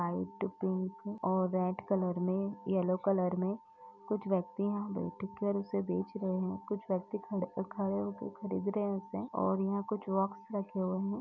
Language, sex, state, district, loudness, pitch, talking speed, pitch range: Hindi, female, Uttar Pradesh, Etah, -35 LUFS, 195 Hz, 175 wpm, 185-205 Hz